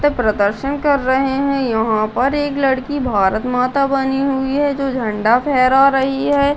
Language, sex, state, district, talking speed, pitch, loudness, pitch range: Hindi, female, Bihar, Muzaffarpur, 175 wpm, 270 Hz, -16 LUFS, 245-275 Hz